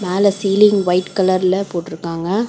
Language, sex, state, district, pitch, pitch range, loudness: Tamil, female, Tamil Nadu, Chennai, 185 Hz, 180-200 Hz, -16 LUFS